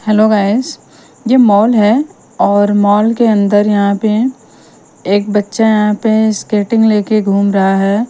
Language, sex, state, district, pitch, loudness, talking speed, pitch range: Hindi, female, Punjab, Kapurthala, 210 Hz, -11 LUFS, 150 wpm, 205-225 Hz